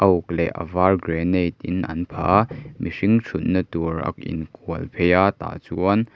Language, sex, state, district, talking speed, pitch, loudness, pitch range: Mizo, male, Mizoram, Aizawl, 185 wpm, 90 Hz, -22 LUFS, 85-95 Hz